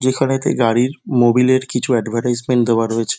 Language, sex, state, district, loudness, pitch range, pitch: Bengali, male, West Bengal, Dakshin Dinajpur, -16 LUFS, 115-130 Hz, 125 Hz